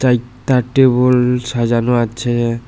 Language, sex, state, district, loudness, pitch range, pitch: Bengali, male, Tripura, West Tripura, -15 LUFS, 120-125 Hz, 125 Hz